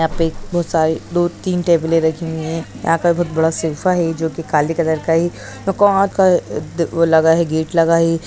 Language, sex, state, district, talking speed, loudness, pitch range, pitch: Hindi, female, Bihar, Saran, 205 wpm, -17 LUFS, 160-175 Hz, 165 Hz